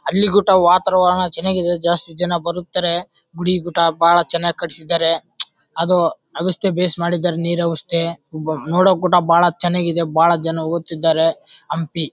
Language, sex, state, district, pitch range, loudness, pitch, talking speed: Kannada, male, Karnataka, Bellary, 165-180 Hz, -17 LUFS, 170 Hz, 130 wpm